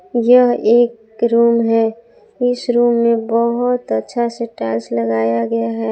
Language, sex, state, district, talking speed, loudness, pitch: Hindi, female, Jharkhand, Palamu, 140 wpm, -16 LUFS, 235 Hz